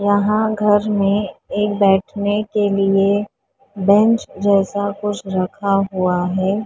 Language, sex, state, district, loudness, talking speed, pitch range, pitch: Hindi, female, Maharashtra, Mumbai Suburban, -17 LUFS, 115 wpm, 195-210 Hz, 200 Hz